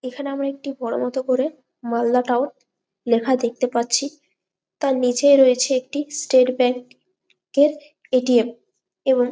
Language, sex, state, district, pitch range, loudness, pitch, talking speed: Bengali, female, West Bengal, Malda, 245-280 Hz, -20 LUFS, 255 Hz, 140 wpm